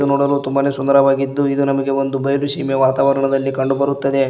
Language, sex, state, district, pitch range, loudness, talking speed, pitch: Kannada, male, Karnataka, Koppal, 135-140 Hz, -16 LUFS, 155 wpm, 135 Hz